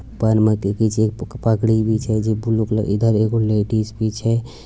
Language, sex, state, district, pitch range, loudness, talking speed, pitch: Angika, male, Bihar, Bhagalpur, 110-115 Hz, -19 LUFS, 195 wpm, 110 Hz